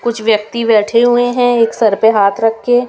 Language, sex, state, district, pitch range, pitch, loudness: Hindi, female, Punjab, Kapurthala, 220-240 Hz, 230 Hz, -12 LUFS